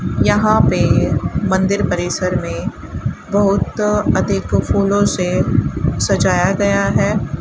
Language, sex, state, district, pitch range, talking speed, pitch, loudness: Hindi, female, Rajasthan, Bikaner, 180-200 Hz, 95 wpm, 195 Hz, -16 LUFS